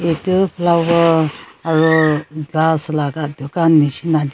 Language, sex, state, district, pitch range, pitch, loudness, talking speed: Nagamese, female, Nagaland, Kohima, 150-165 Hz, 160 Hz, -16 LUFS, 125 wpm